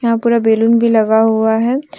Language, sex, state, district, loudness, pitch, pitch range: Hindi, female, Jharkhand, Deoghar, -13 LUFS, 230 Hz, 220-235 Hz